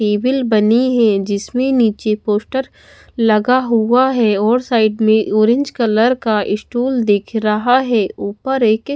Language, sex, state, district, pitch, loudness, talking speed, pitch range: Hindi, female, Odisha, Khordha, 225 Hz, -15 LUFS, 140 wpm, 215-250 Hz